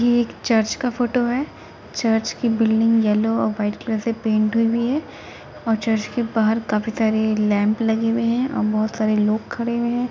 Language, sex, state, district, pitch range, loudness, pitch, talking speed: Hindi, female, Uttar Pradesh, Jalaun, 215-235 Hz, -20 LUFS, 225 Hz, 200 wpm